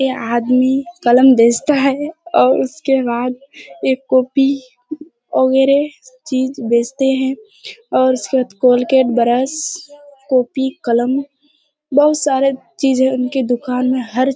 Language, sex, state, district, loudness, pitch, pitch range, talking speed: Hindi, female, Bihar, Kishanganj, -15 LUFS, 265 Hz, 250-285 Hz, 125 wpm